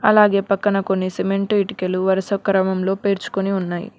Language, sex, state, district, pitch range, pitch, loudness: Telugu, female, Telangana, Mahabubabad, 190-200 Hz, 195 Hz, -19 LUFS